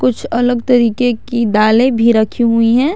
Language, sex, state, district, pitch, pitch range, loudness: Hindi, female, Jharkhand, Garhwa, 235 Hz, 225-245 Hz, -13 LUFS